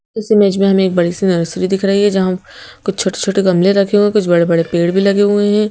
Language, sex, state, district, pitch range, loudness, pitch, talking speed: Hindi, female, Madhya Pradesh, Bhopal, 185-205 Hz, -13 LUFS, 195 Hz, 265 wpm